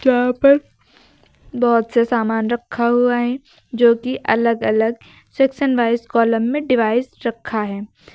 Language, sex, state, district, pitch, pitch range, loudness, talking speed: Hindi, female, Uttar Pradesh, Lucknow, 235 Hz, 230-250 Hz, -18 LUFS, 140 wpm